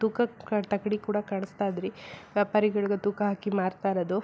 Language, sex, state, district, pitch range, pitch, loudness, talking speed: Kannada, female, Karnataka, Belgaum, 195-210 Hz, 205 Hz, -29 LUFS, 140 wpm